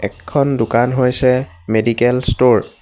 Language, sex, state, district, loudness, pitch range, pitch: Assamese, male, Assam, Hailakandi, -15 LUFS, 115-125 Hz, 125 Hz